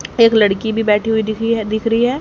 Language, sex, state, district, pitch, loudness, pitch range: Hindi, female, Haryana, Charkhi Dadri, 220 Hz, -15 LUFS, 215-230 Hz